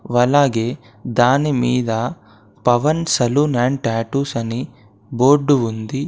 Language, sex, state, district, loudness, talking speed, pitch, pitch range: Telugu, male, Telangana, Komaram Bheem, -18 LUFS, 90 wpm, 120 Hz, 115-140 Hz